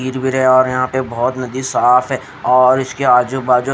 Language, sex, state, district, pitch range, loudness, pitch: Hindi, female, Odisha, Khordha, 125-130 Hz, -14 LUFS, 130 Hz